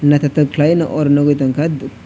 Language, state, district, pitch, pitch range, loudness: Kokborok, Tripura, West Tripura, 145 Hz, 145-150 Hz, -14 LUFS